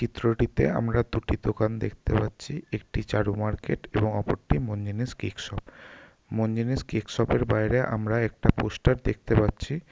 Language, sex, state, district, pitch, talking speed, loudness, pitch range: Bengali, male, West Bengal, North 24 Parganas, 110 Hz, 165 wpm, -27 LUFS, 105-115 Hz